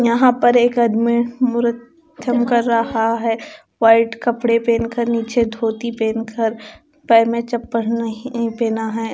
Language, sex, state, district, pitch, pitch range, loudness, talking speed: Hindi, female, Chandigarh, Chandigarh, 235 Hz, 225-240 Hz, -18 LUFS, 125 wpm